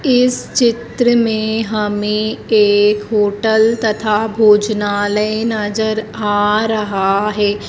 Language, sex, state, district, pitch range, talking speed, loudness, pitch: Hindi, female, Madhya Pradesh, Dhar, 210-220 Hz, 95 wpm, -15 LUFS, 215 Hz